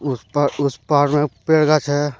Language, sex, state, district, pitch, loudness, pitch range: Hindi, male, Jharkhand, Deoghar, 145 Hz, -18 LUFS, 140-150 Hz